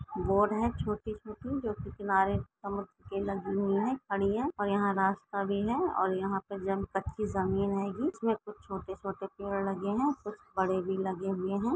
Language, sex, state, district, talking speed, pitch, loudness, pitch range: Hindi, female, Goa, North and South Goa, 205 wpm, 200 Hz, -32 LUFS, 195-210 Hz